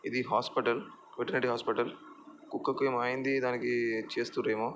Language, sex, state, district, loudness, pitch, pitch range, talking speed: Telugu, male, Andhra Pradesh, Chittoor, -32 LUFS, 125 Hz, 120-135 Hz, 125 wpm